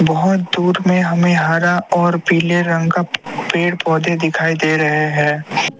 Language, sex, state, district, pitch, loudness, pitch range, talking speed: Hindi, male, Assam, Kamrup Metropolitan, 170 Hz, -15 LUFS, 160-175 Hz, 155 wpm